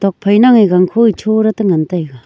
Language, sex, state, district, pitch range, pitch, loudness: Wancho, female, Arunachal Pradesh, Longding, 180-220 Hz, 200 Hz, -11 LUFS